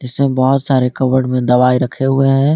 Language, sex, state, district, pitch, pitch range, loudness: Hindi, male, Jharkhand, Garhwa, 130 Hz, 125-135 Hz, -14 LUFS